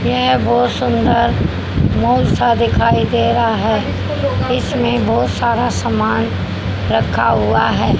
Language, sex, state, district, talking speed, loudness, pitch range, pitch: Hindi, female, Haryana, Charkhi Dadri, 120 wpm, -15 LUFS, 95-115 Hz, 110 Hz